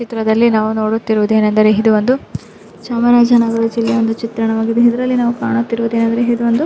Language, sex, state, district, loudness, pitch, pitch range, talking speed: Kannada, female, Karnataka, Chamarajanagar, -14 LUFS, 230 Hz, 220-235 Hz, 180 wpm